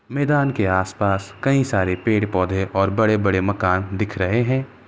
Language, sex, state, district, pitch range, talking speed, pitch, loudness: Hindi, male, Uttar Pradesh, Gorakhpur, 95-120 Hz, 170 wpm, 100 Hz, -20 LUFS